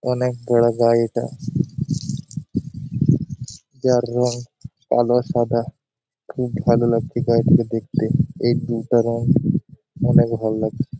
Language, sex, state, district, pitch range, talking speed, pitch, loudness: Bengali, male, West Bengal, Malda, 115-130 Hz, 105 wpm, 120 Hz, -20 LUFS